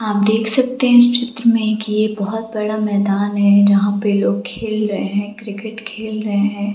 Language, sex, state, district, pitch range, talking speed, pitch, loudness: Hindi, female, Jharkhand, Jamtara, 205-220 Hz, 205 wpm, 215 Hz, -16 LUFS